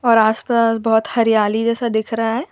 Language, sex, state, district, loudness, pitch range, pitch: Hindi, female, Madhya Pradesh, Bhopal, -17 LUFS, 220-230 Hz, 225 Hz